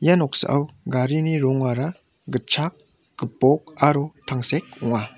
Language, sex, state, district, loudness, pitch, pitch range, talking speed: Garo, male, Meghalaya, West Garo Hills, -22 LUFS, 140 Hz, 130-155 Hz, 105 wpm